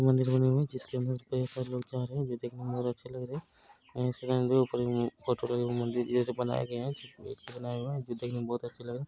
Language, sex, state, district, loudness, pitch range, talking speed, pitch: Maithili, male, Bihar, Araria, -33 LUFS, 120-130 Hz, 250 wpm, 125 Hz